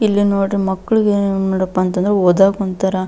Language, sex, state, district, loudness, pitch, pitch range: Kannada, female, Karnataka, Belgaum, -16 LUFS, 195 Hz, 185-200 Hz